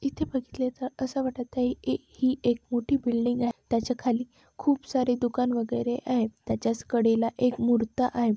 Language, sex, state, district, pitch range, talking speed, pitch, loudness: Marathi, female, Maharashtra, Chandrapur, 235-255 Hz, 170 wpm, 245 Hz, -28 LUFS